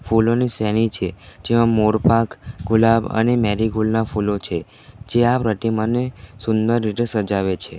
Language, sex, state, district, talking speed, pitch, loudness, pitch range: Gujarati, male, Gujarat, Valsad, 140 wpm, 110 Hz, -19 LUFS, 105-115 Hz